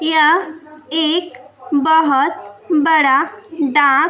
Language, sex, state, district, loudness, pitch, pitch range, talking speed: Hindi, female, Bihar, West Champaran, -15 LUFS, 310 Hz, 285-320 Hz, 75 wpm